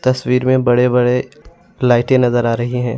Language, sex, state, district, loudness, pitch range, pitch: Hindi, male, Assam, Sonitpur, -15 LUFS, 120-125 Hz, 125 Hz